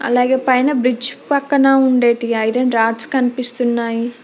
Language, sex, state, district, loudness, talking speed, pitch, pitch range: Telugu, female, Telangana, Hyderabad, -16 LUFS, 115 wpm, 250 Hz, 235-265 Hz